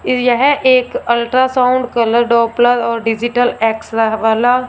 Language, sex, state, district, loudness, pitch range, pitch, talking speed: Hindi, female, Punjab, Fazilka, -13 LUFS, 230-250 Hz, 240 Hz, 115 wpm